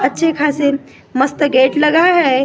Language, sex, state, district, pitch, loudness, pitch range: Hindi, female, Maharashtra, Gondia, 290 Hz, -13 LUFS, 265-310 Hz